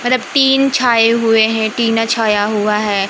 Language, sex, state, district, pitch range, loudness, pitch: Hindi, male, Madhya Pradesh, Katni, 215-240 Hz, -13 LUFS, 225 Hz